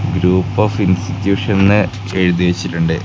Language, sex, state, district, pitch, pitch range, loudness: Malayalam, male, Kerala, Kasaragod, 95 Hz, 90-100 Hz, -15 LUFS